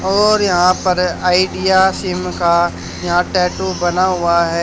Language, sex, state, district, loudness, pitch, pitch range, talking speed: Hindi, male, Haryana, Charkhi Dadri, -15 LUFS, 180 Hz, 175-190 Hz, 140 wpm